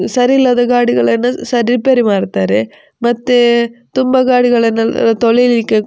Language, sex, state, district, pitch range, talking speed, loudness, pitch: Kannada, female, Karnataka, Dakshina Kannada, 230-245 Hz, 110 wpm, -12 LUFS, 240 Hz